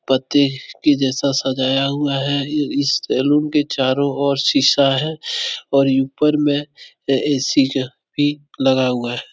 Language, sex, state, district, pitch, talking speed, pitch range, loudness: Hindi, male, Bihar, Supaul, 140 Hz, 150 wpm, 135-145 Hz, -18 LUFS